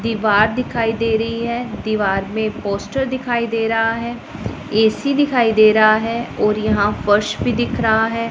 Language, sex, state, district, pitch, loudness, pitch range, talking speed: Hindi, female, Punjab, Pathankot, 225 Hz, -17 LUFS, 215-235 Hz, 175 wpm